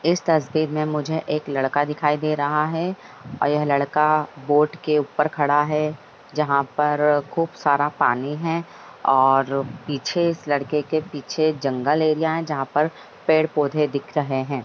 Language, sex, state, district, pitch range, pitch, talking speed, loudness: Hindi, female, Jharkhand, Sahebganj, 145-155 Hz, 150 Hz, 165 wpm, -22 LUFS